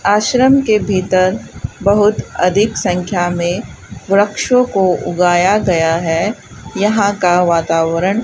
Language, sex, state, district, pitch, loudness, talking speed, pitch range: Hindi, female, Rajasthan, Bikaner, 190 Hz, -14 LUFS, 115 wpm, 175-210 Hz